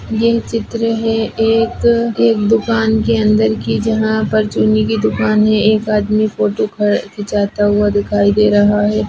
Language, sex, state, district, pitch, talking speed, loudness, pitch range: Hindi, female, Chhattisgarh, Jashpur, 215 Hz, 165 wpm, -14 LUFS, 205-225 Hz